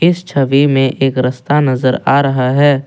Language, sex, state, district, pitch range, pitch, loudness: Hindi, male, Assam, Kamrup Metropolitan, 130-145 Hz, 135 Hz, -13 LUFS